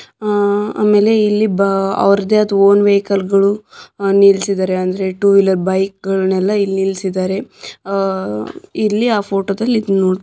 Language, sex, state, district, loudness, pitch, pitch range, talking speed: Kannada, female, Karnataka, Dharwad, -15 LUFS, 195 Hz, 190-205 Hz, 130 wpm